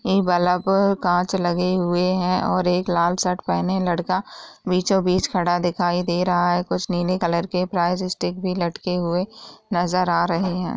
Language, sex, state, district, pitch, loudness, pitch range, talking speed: Hindi, female, Uttar Pradesh, Varanasi, 180 Hz, -21 LUFS, 175-185 Hz, 160 wpm